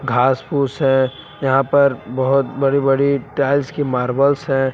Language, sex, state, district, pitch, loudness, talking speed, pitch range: Hindi, male, Jharkhand, Palamu, 135 Hz, -17 LUFS, 150 wpm, 130-140 Hz